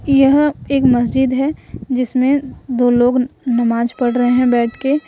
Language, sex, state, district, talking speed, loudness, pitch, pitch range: Hindi, female, Jharkhand, Ranchi, 155 wpm, -15 LUFS, 255 Hz, 245-275 Hz